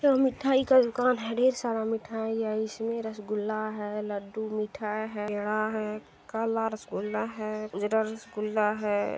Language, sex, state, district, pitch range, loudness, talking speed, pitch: Hindi, female, Bihar, Saharsa, 210-225 Hz, -29 LUFS, 135 wpm, 220 Hz